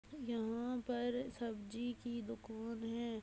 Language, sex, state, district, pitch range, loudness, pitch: Hindi, female, Goa, North and South Goa, 225-245 Hz, -43 LUFS, 235 Hz